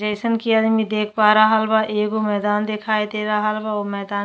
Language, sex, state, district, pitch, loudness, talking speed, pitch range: Bhojpuri, female, Uttar Pradesh, Deoria, 215 Hz, -19 LUFS, 225 wpm, 210-220 Hz